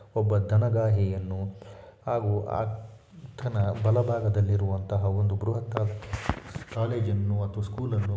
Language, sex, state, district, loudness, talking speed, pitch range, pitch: Kannada, male, Karnataka, Shimoga, -28 LUFS, 105 wpm, 100-115 Hz, 105 Hz